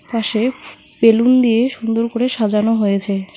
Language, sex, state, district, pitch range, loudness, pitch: Bengali, female, West Bengal, Alipurduar, 215-240 Hz, -16 LUFS, 225 Hz